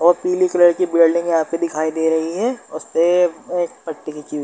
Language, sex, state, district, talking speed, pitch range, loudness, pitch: Hindi, male, Bihar, Darbhanga, 230 wpm, 160-175 Hz, -18 LUFS, 170 Hz